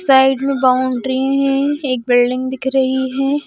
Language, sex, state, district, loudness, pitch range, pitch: Hindi, female, Madhya Pradesh, Bhopal, -16 LUFS, 255-275 Hz, 265 Hz